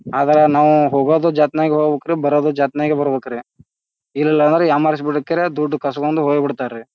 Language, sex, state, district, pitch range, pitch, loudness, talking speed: Kannada, male, Karnataka, Bijapur, 140-150 Hz, 150 Hz, -16 LUFS, 165 wpm